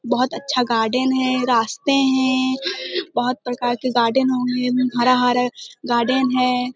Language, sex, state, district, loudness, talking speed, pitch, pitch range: Hindi, female, Uttar Pradesh, Deoria, -19 LUFS, 125 wpm, 250 Hz, 245-260 Hz